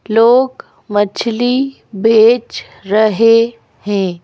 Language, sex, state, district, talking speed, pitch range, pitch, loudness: Hindi, female, Madhya Pradesh, Bhopal, 70 wpm, 205-235 Hz, 225 Hz, -13 LUFS